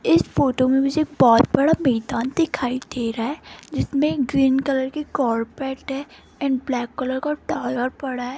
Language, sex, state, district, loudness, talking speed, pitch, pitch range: Hindi, female, Rajasthan, Jaipur, -21 LUFS, 170 wpm, 265 Hz, 245-280 Hz